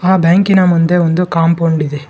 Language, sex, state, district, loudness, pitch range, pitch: Kannada, male, Karnataka, Bangalore, -12 LUFS, 165-180 Hz, 170 Hz